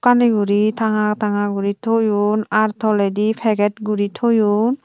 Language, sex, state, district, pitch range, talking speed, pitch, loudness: Chakma, female, Tripura, Unakoti, 205-225 Hz, 135 wpm, 215 Hz, -18 LUFS